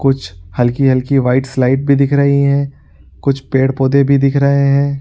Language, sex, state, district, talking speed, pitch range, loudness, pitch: Hindi, male, Bihar, Supaul, 190 wpm, 130-140 Hz, -13 LUFS, 135 Hz